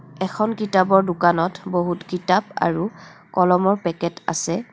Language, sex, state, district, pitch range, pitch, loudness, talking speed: Assamese, female, Assam, Kamrup Metropolitan, 170-190 Hz, 180 Hz, -21 LUFS, 115 wpm